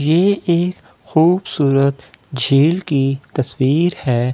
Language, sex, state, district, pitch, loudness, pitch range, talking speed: Hindi, male, Delhi, New Delhi, 145 Hz, -16 LUFS, 135-170 Hz, 125 wpm